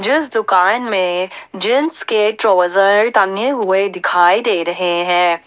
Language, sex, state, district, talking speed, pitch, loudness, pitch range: Hindi, female, Jharkhand, Ranchi, 130 wpm, 190 Hz, -14 LUFS, 180-215 Hz